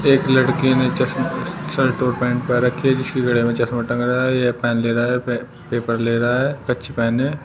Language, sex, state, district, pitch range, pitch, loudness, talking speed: Hindi, male, Uttar Pradesh, Shamli, 120-130 Hz, 125 Hz, -19 LUFS, 225 wpm